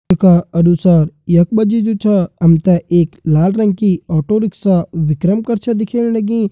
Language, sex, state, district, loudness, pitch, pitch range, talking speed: Hindi, male, Uttarakhand, Uttarkashi, -13 LUFS, 185 Hz, 170-215 Hz, 195 wpm